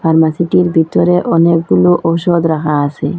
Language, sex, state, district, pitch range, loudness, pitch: Bengali, female, Assam, Hailakandi, 160-175 Hz, -12 LUFS, 165 Hz